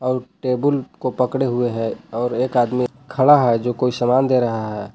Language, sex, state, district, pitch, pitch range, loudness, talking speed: Hindi, male, Jharkhand, Palamu, 125 Hz, 120-130 Hz, -19 LUFS, 205 wpm